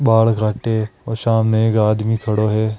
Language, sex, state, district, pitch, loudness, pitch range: Marwari, male, Rajasthan, Nagaur, 110 Hz, -17 LUFS, 110-115 Hz